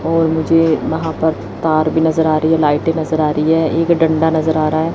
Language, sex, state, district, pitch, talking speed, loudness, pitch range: Hindi, female, Chandigarh, Chandigarh, 160 Hz, 255 wpm, -15 LUFS, 155-160 Hz